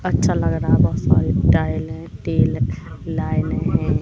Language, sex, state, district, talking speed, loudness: Hindi, female, Madhya Pradesh, Katni, 165 wpm, -19 LUFS